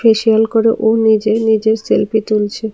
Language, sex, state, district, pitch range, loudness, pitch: Bengali, female, Tripura, South Tripura, 220-225 Hz, -13 LUFS, 220 Hz